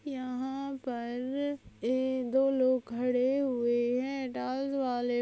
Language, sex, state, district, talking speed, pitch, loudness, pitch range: Hindi, female, Goa, North and South Goa, 105 wpm, 255 Hz, -31 LUFS, 245-270 Hz